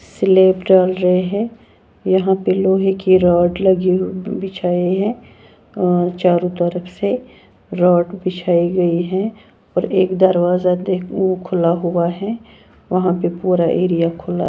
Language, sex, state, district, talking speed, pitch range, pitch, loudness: Hindi, female, Haryana, Jhajjar, 140 wpm, 175-190 Hz, 185 Hz, -17 LUFS